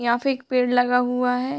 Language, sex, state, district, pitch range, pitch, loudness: Hindi, female, Bihar, Muzaffarpur, 245-255 Hz, 250 Hz, -21 LUFS